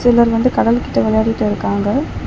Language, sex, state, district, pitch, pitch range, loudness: Tamil, female, Tamil Nadu, Chennai, 225 Hz, 215-240 Hz, -15 LUFS